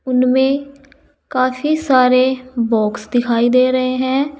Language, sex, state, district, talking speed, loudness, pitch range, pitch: Hindi, female, Uttar Pradesh, Saharanpur, 110 wpm, -16 LUFS, 250-275 Hz, 255 Hz